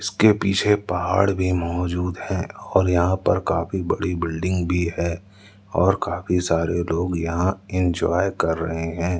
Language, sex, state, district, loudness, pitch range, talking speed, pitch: Hindi, male, Madhya Pradesh, Umaria, -22 LUFS, 85-95 Hz, 150 wpm, 90 Hz